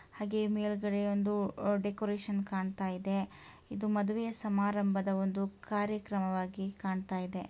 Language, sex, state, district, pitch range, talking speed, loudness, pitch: Kannada, female, Karnataka, Mysore, 195-210 Hz, 105 wpm, -34 LUFS, 200 Hz